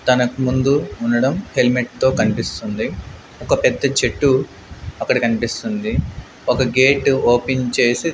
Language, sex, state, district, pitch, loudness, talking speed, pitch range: Telugu, male, Andhra Pradesh, Manyam, 130 Hz, -18 LUFS, 110 wpm, 120-135 Hz